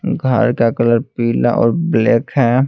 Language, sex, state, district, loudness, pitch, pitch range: Hindi, male, Bihar, Patna, -15 LUFS, 120 Hz, 115-130 Hz